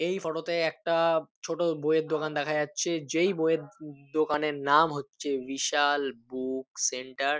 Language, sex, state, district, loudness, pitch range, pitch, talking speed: Bengali, male, West Bengal, North 24 Parganas, -28 LUFS, 140-165 Hz, 150 Hz, 145 wpm